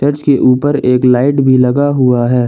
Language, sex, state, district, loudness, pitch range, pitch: Hindi, male, Jharkhand, Ranchi, -11 LUFS, 125-145 Hz, 130 Hz